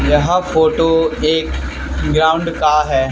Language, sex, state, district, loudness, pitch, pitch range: Hindi, male, Haryana, Charkhi Dadri, -15 LUFS, 155 Hz, 135-160 Hz